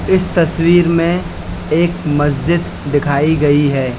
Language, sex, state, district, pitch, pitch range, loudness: Hindi, male, Uttar Pradesh, Lalitpur, 160 Hz, 145-170 Hz, -14 LUFS